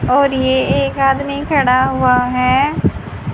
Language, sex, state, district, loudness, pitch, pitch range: Hindi, female, Haryana, Charkhi Dadri, -14 LUFS, 260 Hz, 250-275 Hz